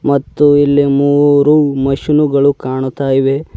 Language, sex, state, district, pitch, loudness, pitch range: Kannada, male, Karnataka, Bidar, 140 Hz, -12 LUFS, 135-145 Hz